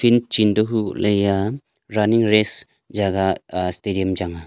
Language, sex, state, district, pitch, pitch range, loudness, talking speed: Wancho, male, Arunachal Pradesh, Longding, 105 Hz, 95-110 Hz, -20 LUFS, 135 wpm